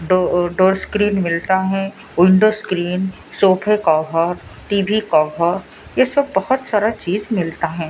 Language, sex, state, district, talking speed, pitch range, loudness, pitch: Hindi, female, Odisha, Sambalpur, 145 wpm, 175-210 Hz, -17 LUFS, 190 Hz